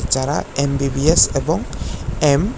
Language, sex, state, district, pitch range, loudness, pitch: Bengali, male, Tripura, West Tripura, 140-150 Hz, -18 LUFS, 140 Hz